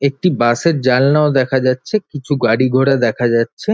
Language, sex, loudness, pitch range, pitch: Bengali, male, -15 LUFS, 125-145 Hz, 135 Hz